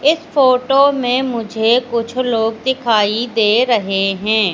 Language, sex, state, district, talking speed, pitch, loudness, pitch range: Hindi, female, Madhya Pradesh, Katni, 130 wpm, 235 Hz, -15 LUFS, 220-255 Hz